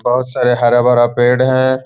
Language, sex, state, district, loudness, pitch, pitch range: Hindi, male, Bihar, Gaya, -12 LUFS, 125 Hz, 120-130 Hz